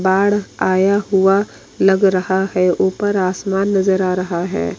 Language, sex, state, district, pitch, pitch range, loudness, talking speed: Hindi, female, Bihar, Kishanganj, 190 Hz, 185-195 Hz, -16 LUFS, 150 wpm